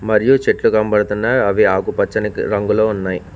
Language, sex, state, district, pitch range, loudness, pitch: Telugu, male, Telangana, Mahabubabad, 105-110 Hz, -16 LUFS, 105 Hz